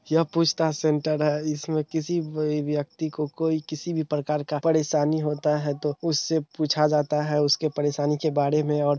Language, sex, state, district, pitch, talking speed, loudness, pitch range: Hindi, male, Bihar, Araria, 150 Hz, 185 wpm, -25 LUFS, 150-160 Hz